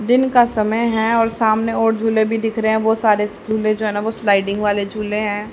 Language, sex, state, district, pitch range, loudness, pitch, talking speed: Hindi, male, Haryana, Rohtak, 210-225 Hz, -17 LUFS, 220 Hz, 250 wpm